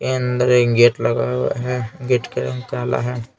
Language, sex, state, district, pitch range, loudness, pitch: Hindi, male, Bihar, Patna, 115-125 Hz, -19 LUFS, 120 Hz